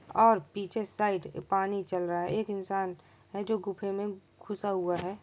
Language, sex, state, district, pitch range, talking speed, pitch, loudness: Maithili, male, Bihar, Supaul, 185-205 Hz, 185 wpm, 195 Hz, -31 LUFS